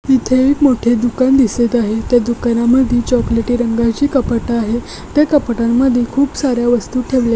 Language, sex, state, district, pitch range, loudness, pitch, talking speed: Marathi, female, Maharashtra, Nagpur, 235-260 Hz, -14 LUFS, 245 Hz, 145 wpm